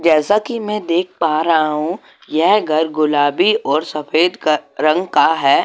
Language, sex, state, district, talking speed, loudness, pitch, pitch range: Hindi, male, Goa, North and South Goa, 160 wpm, -16 LUFS, 160 Hz, 155-185 Hz